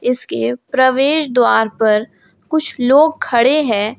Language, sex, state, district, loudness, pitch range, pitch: Hindi, female, Jharkhand, Ranchi, -14 LUFS, 215-275 Hz, 250 Hz